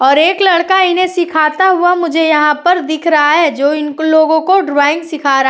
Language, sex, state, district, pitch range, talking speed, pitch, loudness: Hindi, female, Uttar Pradesh, Etah, 300-355 Hz, 220 wpm, 315 Hz, -11 LUFS